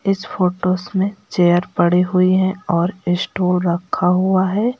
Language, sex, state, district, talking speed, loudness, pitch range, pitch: Hindi, female, Uttar Pradesh, Lucknow, 150 wpm, -17 LUFS, 180-190 Hz, 185 Hz